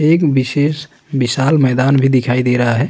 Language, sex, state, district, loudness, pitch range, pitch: Hindi, male, Uttarakhand, Tehri Garhwal, -14 LUFS, 125-145 Hz, 135 Hz